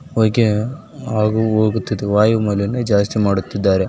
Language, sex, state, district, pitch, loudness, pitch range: Kannada, male, Karnataka, Bijapur, 110 Hz, -17 LUFS, 100-110 Hz